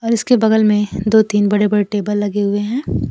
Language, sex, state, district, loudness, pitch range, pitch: Hindi, female, Bihar, Kaimur, -15 LUFS, 205-220 Hz, 210 Hz